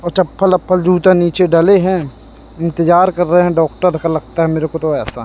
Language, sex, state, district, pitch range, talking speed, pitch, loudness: Hindi, male, Madhya Pradesh, Katni, 160-185 Hz, 215 wpm, 175 Hz, -13 LUFS